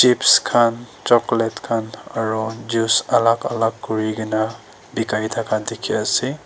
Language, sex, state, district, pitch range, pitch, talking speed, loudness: Nagamese, male, Nagaland, Dimapur, 110-115 Hz, 115 Hz, 130 wpm, -19 LUFS